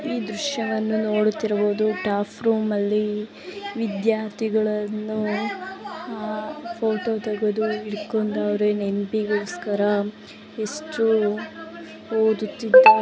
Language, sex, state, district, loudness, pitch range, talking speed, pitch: Kannada, female, Karnataka, Dharwad, -23 LUFS, 210-220 Hz, 55 wpm, 215 Hz